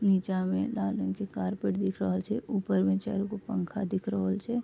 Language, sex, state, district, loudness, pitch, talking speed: Maithili, female, Bihar, Vaishali, -31 LUFS, 185 Hz, 195 wpm